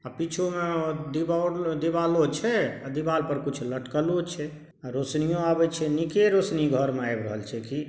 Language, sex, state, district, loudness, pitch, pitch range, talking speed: Maithili, male, Bihar, Saharsa, -27 LUFS, 155 Hz, 140-170 Hz, 175 wpm